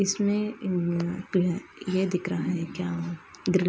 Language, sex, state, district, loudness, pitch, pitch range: Hindi, female, Andhra Pradesh, Anantapur, -28 LUFS, 180 Hz, 170-195 Hz